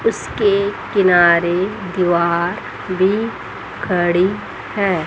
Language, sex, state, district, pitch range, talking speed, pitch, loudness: Hindi, female, Chandigarh, Chandigarh, 175-200 Hz, 70 wpm, 185 Hz, -17 LUFS